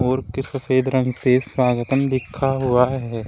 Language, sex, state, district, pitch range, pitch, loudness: Hindi, male, Uttar Pradesh, Shamli, 125-135 Hz, 130 Hz, -20 LUFS